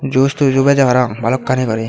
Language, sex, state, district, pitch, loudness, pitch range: Chakma, male, Tripura, Dhalai, 130 Hz, -14 LUFS, 125-135 Hz